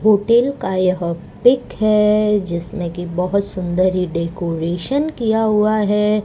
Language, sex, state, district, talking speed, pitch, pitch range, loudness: Hindi, female, Rajasthan, Bikaner, 135 wpm, 200 Hz, 175-215 Hz, -18 LUFS